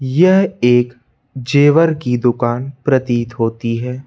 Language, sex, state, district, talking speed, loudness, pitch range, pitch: Hindi, male, Madhya Pradesh, Bhopal, 120 wpm, -15 LUFS, 120-140 Hz, 125 Hz